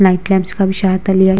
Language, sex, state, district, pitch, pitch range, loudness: Hindi, female, Bihar, Vaishali, 190 Hz, 190-195 Hz, -14 LUFS